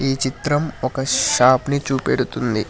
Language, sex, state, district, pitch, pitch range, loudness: Telugu, male, Telangana, Hyderabad, 135 Hz, 130-140 Hz, -19 LUFS